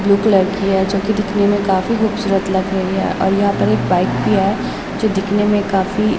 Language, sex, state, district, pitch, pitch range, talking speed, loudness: Hindi, female, Uttarakhand, Tehri Garhwal, 195 Hz, 195-205 Hz, 240 wpm, -16 LUFS